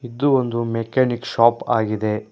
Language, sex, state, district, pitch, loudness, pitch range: Kannada, male, Karnataka, Koppal, 115 Hz, -20 LUFS, 110-125 Hz